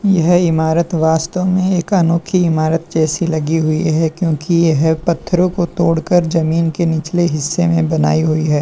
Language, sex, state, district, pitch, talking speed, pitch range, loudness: Hindi, male, Uttar Pradesh, Lalitpur, 165 Hz, 160 wpm, 160-175 Hz, -15 LUFS